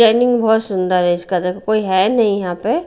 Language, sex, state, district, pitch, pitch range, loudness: Hindi, female, Bihar, Patna, 200 Hz, 180-230 Hz, -16 LUFS